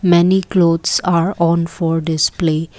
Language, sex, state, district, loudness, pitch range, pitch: English, female, Assam, Kamrup Metropolitan, -15 LUFS, 165-175 Hz, 170 Hz